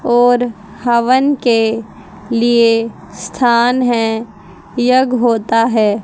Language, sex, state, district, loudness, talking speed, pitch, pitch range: Hindi, female, Haryana, Rohtak, -14 LUFS, 90 wpm, 235 Hz, 225-245 Hz